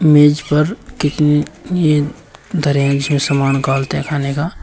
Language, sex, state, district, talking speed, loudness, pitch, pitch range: Hindi, male, Uttar Pradesh, Shamli, 130 wpm, -16 LUFS, 150 Hz, 140-155 Hz